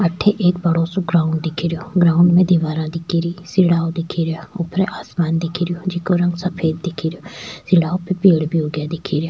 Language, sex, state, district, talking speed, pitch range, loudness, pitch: Rajasthani, female, Rajasthan, Churu, 185 wpm, 165-180 Hz, -18 LUFS, 170 Hz